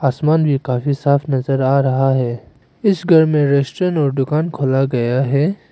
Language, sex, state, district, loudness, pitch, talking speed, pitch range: Hindi, male, Arunachal Pradesh, Papum Pare, -16 LUFS, 140 Hz, 180 wpm, 135-155 Hz